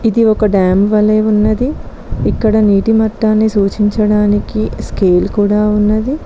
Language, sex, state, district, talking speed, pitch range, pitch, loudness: Telugu, female, Telangana, Mahabubabad, 115 wpm, 205-220 Hz, 210 Hz, -12 LUFS